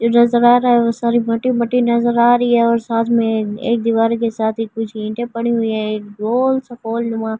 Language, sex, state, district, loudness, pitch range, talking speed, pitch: Hindi, female, Delhi, New Delhi, -16 LUFS, 225-240 Hz, 250 wpm, 230 Hz